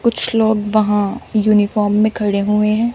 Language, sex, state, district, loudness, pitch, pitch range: Hindi, female, Chandigarh, Chandigarh, -16 LUFS, 210 Hz, 205-220 Hz